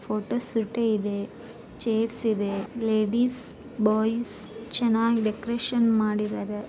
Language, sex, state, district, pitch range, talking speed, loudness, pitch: Kannada, female, Karnataka, Raichur, 215-235 Hz, 90 wpm, -26 LUFS, 225 Hz